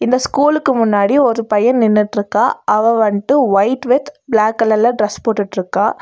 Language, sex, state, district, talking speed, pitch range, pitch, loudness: Tamil, female, Tamil Nadu, Nilgiris, 150 wpm, 210-260 Hz, 225 Hz, -14 LUFS